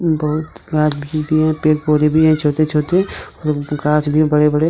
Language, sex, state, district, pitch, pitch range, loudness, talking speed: Hindi, male, Jharkhand, Deoghar, 150 Hz, 150-155 Hz, -16 LUFS, 165 wpm